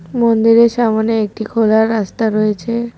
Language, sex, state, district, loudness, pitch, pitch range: Bengali, female, West Bengal, Cooch Behar, -14 LUFS, 225 Hz, 220-235 Hz